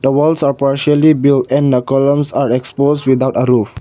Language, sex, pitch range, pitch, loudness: English, male, 130-145 Hz, 140 Hz, -13 LUFS